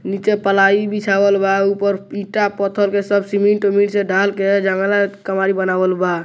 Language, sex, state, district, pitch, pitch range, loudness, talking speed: Bhojpuri, male, Bihar, Muzaffarpur, 200 Hz, 195-200 Hz, -16 LUFS, 175 wpm